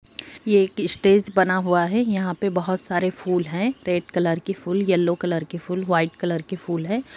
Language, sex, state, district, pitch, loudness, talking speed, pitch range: Hindi, female, Bihar, Gopalganj, 185 Hz, -22 LUFS, 210 wpm, 175-200 Hz